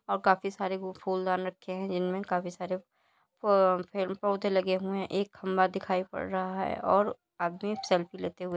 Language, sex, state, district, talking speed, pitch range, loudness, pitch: Hindi, male, Bihar, Jahanabad, 190 wpm, 185-195 Hz, -30 LUFS, 190 Hz